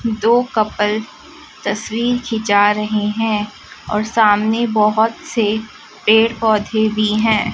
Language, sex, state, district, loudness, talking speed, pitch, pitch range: Hindi, female, Chhattisgarh, Raipur, -16 LUFS, 110 wpm, 220 Hz, 210-225 Hz